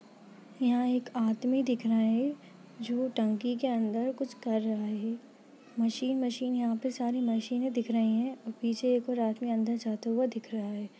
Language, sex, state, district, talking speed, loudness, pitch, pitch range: Hindi, female, Bihar, Sitamarhi, 185 wpm, -31 LUFS, 235 Hz, 225-250 Hz